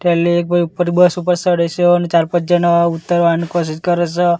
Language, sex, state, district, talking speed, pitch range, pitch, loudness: Gujarati, male, Gujarat, Gandhinagar, 175 wpm, 170-175 Hz, 175 Hz, -15 LUFS